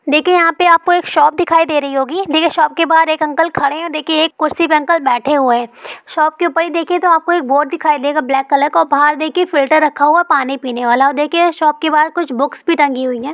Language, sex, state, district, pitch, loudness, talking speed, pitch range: Hindi, female, Bihar, Supaul, 310 Hz, -13 LUFS, 245 wpm, 285-335 Hz